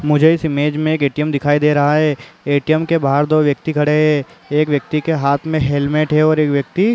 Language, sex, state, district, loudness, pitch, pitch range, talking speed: Hindi, male, Uttar Pradesh, Muzaffarnagar, -16 LUFS, 150 Hz, 145-155 Hz, 240 wpm